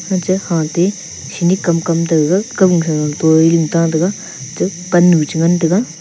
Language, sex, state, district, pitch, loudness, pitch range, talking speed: Wancho, male, Arunachal Pradesh, Longding, 170 Hz, -14 LUFS, 160-185 Hz, 130 wpm